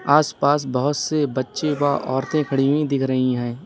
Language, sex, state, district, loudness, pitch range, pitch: Hindi, male, Uttar Pradesh, Lalitpur, -21 LUFS, 130-150 Hz, 140 Hz